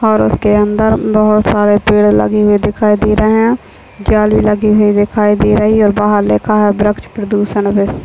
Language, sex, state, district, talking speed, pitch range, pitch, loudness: Hindi, female, Chhattisgarh, Bilaspur, 195 wpm, 205-215 Hz, 210 Hz, -11 LUFS